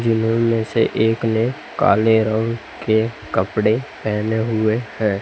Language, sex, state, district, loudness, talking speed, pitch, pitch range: Hindi, male, Chhattisgarh, Raipur, -19 LUFS, 125 wpm, 110 Hz, 110-115 Hz